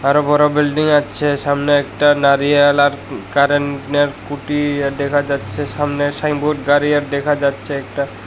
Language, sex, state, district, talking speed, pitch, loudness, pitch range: Bengali, male, Tripura, West Tripura, 140 wpm, 145 Hz, -16 LUFS, 140-145 Hz